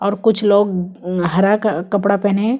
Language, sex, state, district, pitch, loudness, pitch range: Hindi, female, Chhattisgarh, Kabirdham, 200 Hz, -16 LUFS, 185-210 Hz